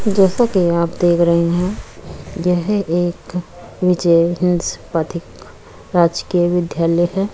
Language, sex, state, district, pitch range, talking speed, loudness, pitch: Hindi, female, Uttar Pradesh, Muzaffarnagar, 170-180 Hz, 115 wpm, -17 LUFS, 175 Hz